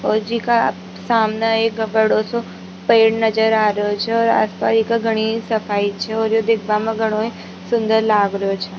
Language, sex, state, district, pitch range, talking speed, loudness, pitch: Rajasthani, female, Rajasthan, Nagaur, 205-225 Hz, 185 wpm, -18 LUFS, 220 Hz